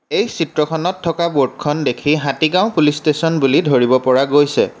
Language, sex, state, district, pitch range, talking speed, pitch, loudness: Assamese, male, Assam, Kamrup Metropolitan, 140-160 Hz, 150 wpm, 150 Hz, -16 LUFS